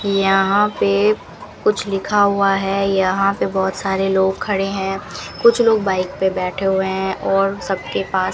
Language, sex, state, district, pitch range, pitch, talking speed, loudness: Hindi, female, Rajasthan, Bikaner, 190-200 Hz, 195 Hz, 175 wpm, -18 LUFS